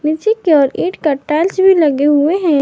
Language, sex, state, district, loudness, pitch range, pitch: Hindi, female, Jharkhand, Garhwa, -13 LUFS, 295-370 Hz, 315 Hz